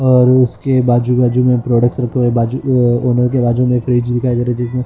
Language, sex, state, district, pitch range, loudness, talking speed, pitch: Hindi, male, Maharashtra, Mumbai Suburban, 120-125 Hz, -14 LUFS, 245 wpm, 125 Hz